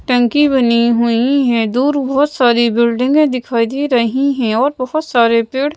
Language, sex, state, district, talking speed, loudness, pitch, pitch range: Hindi, female, Madhya Pradesh, Bhopal, 165 wpm, -14 LUFS, 250 Hz, 235-280 Hz